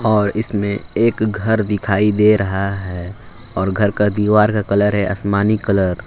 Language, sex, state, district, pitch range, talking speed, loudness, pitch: Hindi, male, Jharkhand, Palamu, 100-105 Hz, 180 wpm, -17 LUFS, 105 Hz